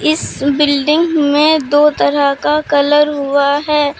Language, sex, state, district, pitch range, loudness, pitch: Hindi, female, Uttar Pradesh, Lucknow, 285-300 Hz, -13 LUFS, 290 Hz